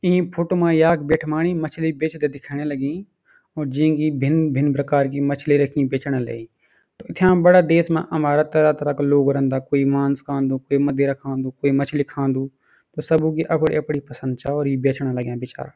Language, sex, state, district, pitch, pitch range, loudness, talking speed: Garhwali, male, Uttarakhand, Uttarkashi, 145 Hz, 140-160 Hz, -20 LUFS, 185 wpm